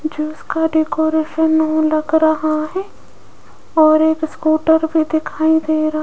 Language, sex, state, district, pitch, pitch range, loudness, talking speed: Hindi, female, Rajasthan, Jaipur, 315 Hz, 310-320 Hz, -16 LUFS, 150 wpm